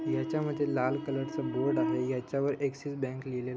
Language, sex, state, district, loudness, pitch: Marathi, male, Maharashtra, Dhule, -32 LUFS, 130 Hz